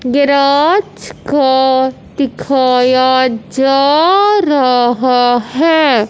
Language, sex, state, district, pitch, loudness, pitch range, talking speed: Hindi, male, Punjab, Fazilka, 265 Hz, -11 LUFS, 255-285 Hz, 60 wpm